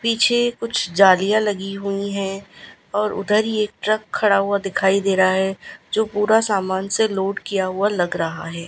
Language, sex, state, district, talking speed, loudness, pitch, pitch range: Hindi, female, Gujarat, Gandhinagar, 180 wpm, -19 LUFS, 200 Hz, 190-215 Hz